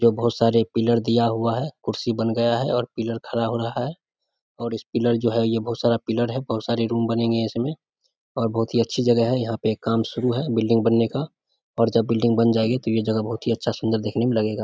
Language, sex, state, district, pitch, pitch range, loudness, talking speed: Hindi, male, Bihar, Samastipur, 115 Hz, 115-120 Hz, -22 LUFS, 255 wpm